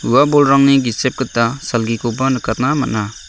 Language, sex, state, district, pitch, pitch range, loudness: Garo, male, Meghalaya, South Garo Hills, 130 Hz, 115-140 Hz, -15 LUFS